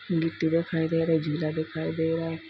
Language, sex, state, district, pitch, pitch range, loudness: Hindi, male, Uttar Pradesh, Jalaun, 160 Hz, 160-165 Hz, -27 LUFS